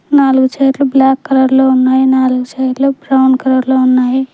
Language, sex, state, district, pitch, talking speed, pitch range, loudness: Telugu, female, Telangana, Mahabubabad, 265 Hz, 195 wpm, 260-270 Hz, -11 LUFS